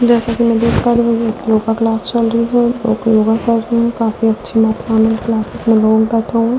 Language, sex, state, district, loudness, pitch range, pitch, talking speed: Hindi, female, Delhi, New Delhi, -14 LUFS, 225-235 Hz, 230 Hz, 255 wpm